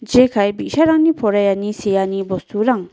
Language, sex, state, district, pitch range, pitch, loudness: Garo, female, Meghalaya, West Garo Hills, 195-250 Hz, 205 Hz, -16 LUFS